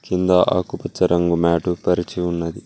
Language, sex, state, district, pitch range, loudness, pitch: Telugu, male, Telangana, Mahabubabad, 85-90 Hz, -19 LUFS, 90 Hz